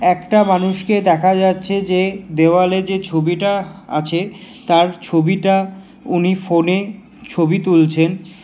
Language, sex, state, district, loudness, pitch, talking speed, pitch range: Bengali, male, West Bengal, Alipurduar, -16 LUFS, 185 Hz, 105 wpm, 175-195 Hz